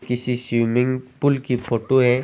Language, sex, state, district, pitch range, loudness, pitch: Hindi, male, Rajasthan, Churu, 120-130 Hz, -21 LUFS, 125 Hz